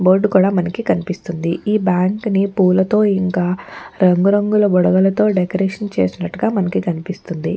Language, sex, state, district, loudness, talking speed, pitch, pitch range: Telugu, female, Andhra Pradesh, Chittoor, -16 LUFS, 125 wpm, 190 Hz, 180-205 Hz